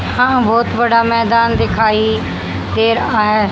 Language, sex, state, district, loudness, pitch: Hindi, female, Haryana, Rohtak, -14 LUFS, 220 Hz